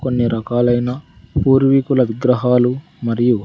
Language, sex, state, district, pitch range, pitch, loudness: Telugu, male, Andhra Pradesh, Sri Satya Sai, 120-135 Hz, 125 Hz, -16 LUFS